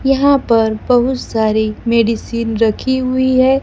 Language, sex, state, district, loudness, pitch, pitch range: Hindi, female, Bihar, Kaimur, -14 LUFS, 240 Hz, 225-260 Hz